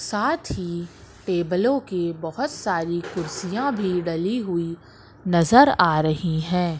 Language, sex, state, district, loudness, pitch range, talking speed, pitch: Hindi, female, Madhya Pradesh, Katni, -22 LUFS, 170-210 Hz, 125 wpm, 180 Hz